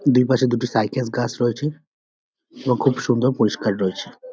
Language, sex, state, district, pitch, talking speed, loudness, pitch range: Bengali, male, West Bengal, North 24 Parganas, 125 Hz, 150 wpm, -21 LUFS, 120-135 Hz